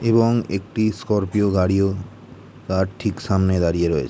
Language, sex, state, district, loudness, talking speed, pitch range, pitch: Bengali, male, West Bengal, Jhargram, -20 LUFS, 130 wpm, 95-110 Hz, 100 Hz